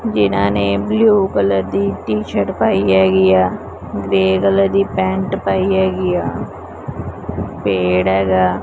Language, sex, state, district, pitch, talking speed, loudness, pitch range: Punjabi, male, Punjab, Pathankot, 100 Hz, 130 wpm, -16 LUFS, 95-105 Hz